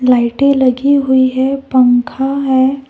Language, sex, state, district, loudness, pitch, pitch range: Hindi, female, Jharkhand, Deoghar, -12 LUFS, 265 Hz, 255-275 Hz